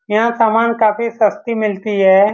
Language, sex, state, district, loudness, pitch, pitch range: Hindi, male, Bihar, Saran, -15 LUFS, 215 Hz, 210-230 Hz